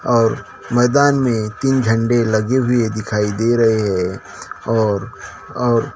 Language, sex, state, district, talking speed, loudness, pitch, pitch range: Hindi, male, Maharashtra, Gondia, 130 wpm, -17 LUFS, 115 Hz, 110-125 Hz